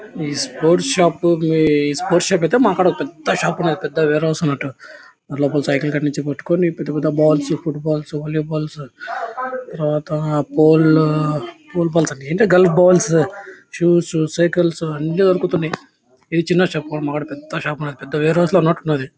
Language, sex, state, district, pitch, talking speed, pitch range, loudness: Telugu, male, Andhra Pradesh, Anantapur, 155 Hz, 145 wpm, 150-175 Hz, -17 LUFS